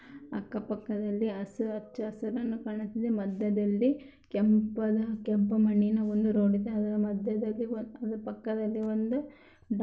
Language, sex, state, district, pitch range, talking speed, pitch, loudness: Kannada, female, Karnataka, Raichur, 210-230 Hz, 100 wpm, 220 Hz, -31 LUFS